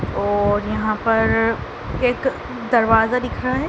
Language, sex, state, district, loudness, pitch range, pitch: Hindi, female, Madhya Pradesh, Dhar, -19 LUFS, 215-245 Hz, 225 Hz